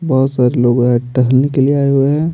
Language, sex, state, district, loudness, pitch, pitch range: Hindi, male, Bihar, Patna, -13 LUFS, 135 Hz, 125-140 Hz